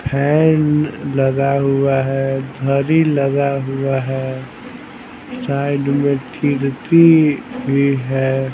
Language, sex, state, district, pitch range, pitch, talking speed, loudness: Hindi, male, Bihar, Patna, 135-150 Hz, 140 Hz, 90 wpm, -16 LUFS